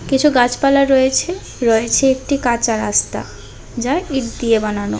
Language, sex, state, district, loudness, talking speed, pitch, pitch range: Bengali, female, Tripura, West Tripura, -16 LUFS, 130 wpm, 255 Hz, 230-275 Hz